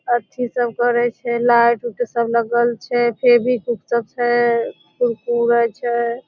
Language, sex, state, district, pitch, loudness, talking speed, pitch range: Maithili, female, Bihar, Supaul, 240 Hz, -18 LUFS, 135 wpm, 235-240 Hz